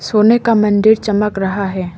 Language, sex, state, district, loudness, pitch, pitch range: Hindi, female, Arunachal Pradesh, Lower Dibang Valley, -13 LUFS, 210 Hz, 195-220 Hz